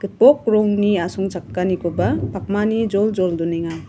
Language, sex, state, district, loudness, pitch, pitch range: Garo, female, Meghalaya, West Garo Hills, -19 LUFS, 190 Hz, 170-210 Hz